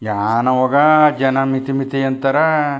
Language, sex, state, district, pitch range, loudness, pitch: Kannada, male, Karnataka, Chamarajanagar, 130-145 Hz, -15 LUFS, 135 Hz